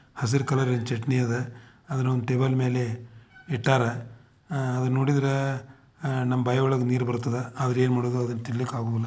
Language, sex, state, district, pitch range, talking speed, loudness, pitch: Kannada, male, Karnataka, Dharwad, 120-130 Hz, 165 wpm, -26 LUFS, 125 Hz